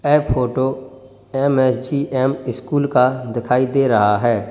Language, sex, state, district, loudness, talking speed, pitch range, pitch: Hindi, male, Uttar Pradesh, Lalitpur, -18 LUFS, 120 wpm, 125-135 Hz, 130 Hz